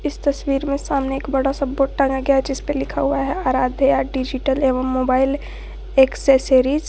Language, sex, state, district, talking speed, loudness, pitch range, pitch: Hindi, female, Jharkhand, Garhwa, 185 wpm, -19 LUFS, 265-280 Hz, 270 Hz